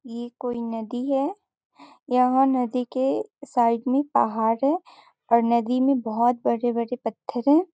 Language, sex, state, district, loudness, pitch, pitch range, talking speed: Hindi, female, Bihar, Sitamarhi, -23 LUFS, 250 Hz, 235-270 Hz, 145 wpm